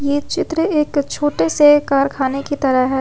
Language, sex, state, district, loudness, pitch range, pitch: Hindi, female, Jharkhand, Ranchi, -16 LUFS, 275-295 Hz, 285 Hz